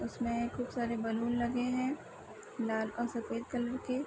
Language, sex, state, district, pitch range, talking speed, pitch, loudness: Hindi, female, Bihar, Sitamarhi, 235-250 Hz, 160 wpm, 240 Hz, -35 LUFS